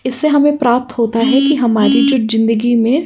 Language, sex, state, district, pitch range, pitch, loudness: Hindi, female, Uttar Pradesh, Jyotiba Phule Nagar, 230-275 Hz, 250 Hz, -13 LUFS